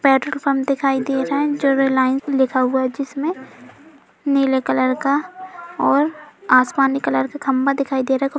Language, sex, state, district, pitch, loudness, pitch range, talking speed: Hindi, female, Uttar Pradesh, Jalaun, 275 Hz, -19 LUFS, 265-290 Hz, 195 wpm